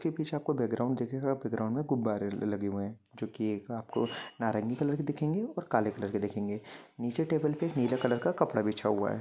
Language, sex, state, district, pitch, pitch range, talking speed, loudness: Hindi, male, Jharkhand, Jamtara, 120 Hz, 105-145 Hz, 175 wpm, -32 LUFS